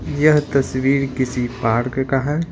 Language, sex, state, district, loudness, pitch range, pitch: Hindi, male, Bihar, Patna, -19 LUFS, 130-145 Hz, 135 Hz